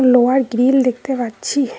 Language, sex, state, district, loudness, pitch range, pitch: Bengali, female, West Bengal, Cooch Behar, -16 LUFS, 245-270 Hz, 255 Hz